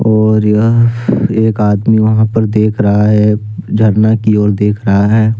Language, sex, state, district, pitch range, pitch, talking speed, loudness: Hindi, male, Jharkhand, Deoghar, 105-110 Hz, 110 Hz, 165 wpm, -11 LUFS